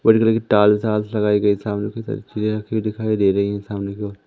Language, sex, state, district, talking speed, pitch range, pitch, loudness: Hindi, male, Madhya Pradesh, Umaria, 295 wpm, 100-110 Hz, 105 Hz, -20 LUFS